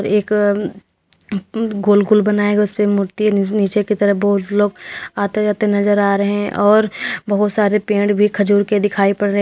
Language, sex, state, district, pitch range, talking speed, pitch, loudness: Hindi, female, Uttar Pradesh, Lalitpur, 205-210 Hz, 190 wpm, 205 Hz, -16 LUFS